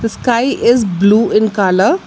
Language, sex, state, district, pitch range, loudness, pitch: English, female, Telangana, Hyderabad, 205-240 Hz, -12 LUFS, 225 Hz